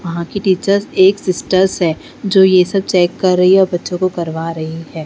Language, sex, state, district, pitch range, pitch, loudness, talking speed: Hindi, female, Bihar, Patna, 170-195 Hz, 185 Hz, -14 LUFS, 225 wpm